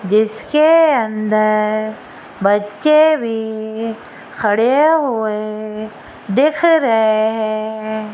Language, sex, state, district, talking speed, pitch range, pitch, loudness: Hindi, female, Rajasthan, Jaipur, 65 wpm, 215-265 Hz, 220 Hz, -15 LUFS